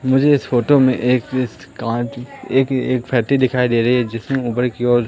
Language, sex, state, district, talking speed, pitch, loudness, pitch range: Hindi, male, Madhya Pradesh, Katni, 165 wpm, 125 Hz, -17 LUFS, 120-130 Hz